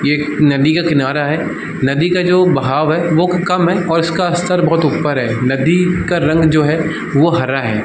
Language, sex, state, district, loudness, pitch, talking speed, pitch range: Hindi, male, Bihar, Darbhanga, -14 LUFS, 160 Hz, 230 wpm, 145-175 Hz